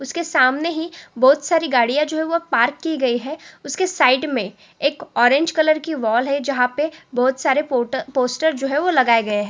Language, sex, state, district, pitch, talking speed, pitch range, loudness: Hindi, female, Chhattisgarh, Sukma, 280 Hz, 215 wpm, 250-315 Hz, -19 LUFS